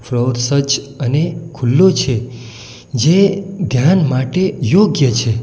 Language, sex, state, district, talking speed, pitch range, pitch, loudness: Gujarati, male, Gujarat, Valsad, 110 wpm, 125-175 Hz, 135 Hz, -15 LUFS